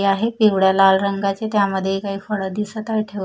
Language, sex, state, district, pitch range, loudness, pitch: Marathi, female, Maharashtra, Mumbai Suburban, 195-215 Hz, -19 LUFS, 200 Hz